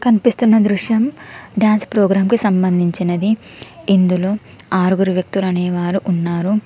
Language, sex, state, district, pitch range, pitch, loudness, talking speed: Telugu, female, Telangana, Komaram Bheem, 180-215 Hz, 195 Hz, -16 LUFS, 100 wpm